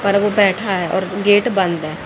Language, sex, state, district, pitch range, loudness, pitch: Hindi, female, Haryana, Rohtak, 185-205 Hz, -16 LUFS, 195 Hz